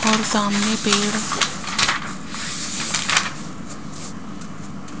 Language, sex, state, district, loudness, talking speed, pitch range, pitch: Hindi, male, Rajasthan, Jaipur, -20 LUFS, 35 wpm, 205-220 Hz, 215 Hz